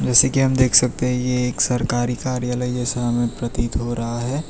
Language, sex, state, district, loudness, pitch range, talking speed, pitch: Hindi, male, Gujarat, Valsad, -20 LUFS, 120-125 Hz, 215 wpm, 125 Hz